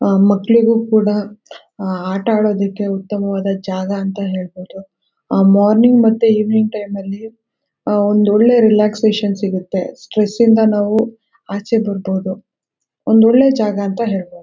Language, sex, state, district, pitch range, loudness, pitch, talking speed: Kannada, female, Karnataka, Mysore, 195-220 Hz, -15 LUFS, 205 Hz, 125 wpm